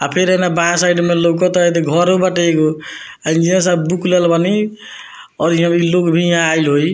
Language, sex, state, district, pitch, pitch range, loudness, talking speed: Bhojpuri, male, Bihar, Muzaffarpur, 175 Hz, 165-180 Hz, -14 LUFS, 215 wpm